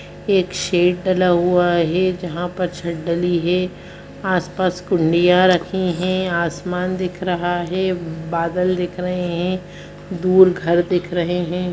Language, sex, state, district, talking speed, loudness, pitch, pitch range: Hindi, female, Bihar, Madhepura, 140 wpm, -19 LUFS, 180 Hz, 175-185 Hz